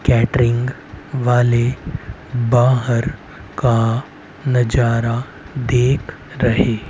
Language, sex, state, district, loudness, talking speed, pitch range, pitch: Hindi, male, Haryana, Rohtak, -18 LUFS, 60 wpm, 115-130 Hz, 120 Hz